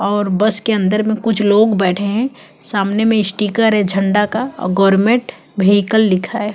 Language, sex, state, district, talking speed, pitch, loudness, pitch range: Hindi, female, Chhattisgarh, Kabirdham, 175 wpm, 210 Hz, -15 LUFS, 200-220 Hz